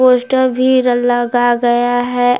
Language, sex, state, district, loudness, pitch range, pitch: Hindi, female, Jharkhand, Palamu, -13 LUFS, 245-255 Hz, 245 Hz